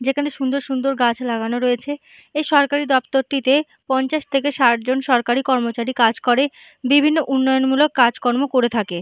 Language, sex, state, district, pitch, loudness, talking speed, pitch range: Bengali, female, West Bengal, Malda, 265 Hz, -18 LUFS, 145 wpm, 245-280 Hz